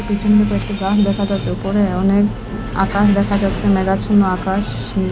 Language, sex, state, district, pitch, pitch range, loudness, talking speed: Bengali, female, Assam, Hailakandi, 200 Hz, 195-205 Hz, -17 LUFS, 155 wpm